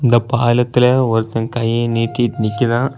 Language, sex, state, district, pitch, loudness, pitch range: Tamil, male, Tamil Nadu, Kanyakumari, 120 Hz, -16 LUFS, 115-125 Hz